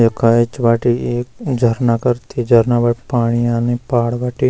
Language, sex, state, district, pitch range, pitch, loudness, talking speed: Garhwali, male, Uttarakhand, Uttarkashi, 115-125 Hz, 120 Hz, -16 LUFS, 160 wpm